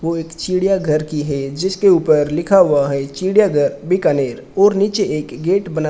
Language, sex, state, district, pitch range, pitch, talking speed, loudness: Hindi, male, Rajasthan, Bikaner, 150-190 Hz, 165 Hz, 175 wpm, -16 LUFS